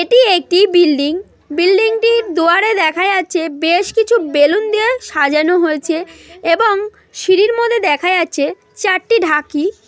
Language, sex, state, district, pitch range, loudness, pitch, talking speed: Bengali, female, West Bengal, Malda, 330-425 Hz, -13 LUFS, 365 Hz, 115 wpm